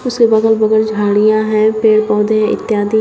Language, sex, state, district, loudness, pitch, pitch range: Hindi, female, Uttar Pradesh, Shamli, -12 LUFS, 215 Hz, 215-220 Hz